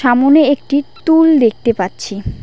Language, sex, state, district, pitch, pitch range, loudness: Bengali, female, West Bengal, Cooch Behar, 275 Hz, 230-295 Hz, -12 LUFS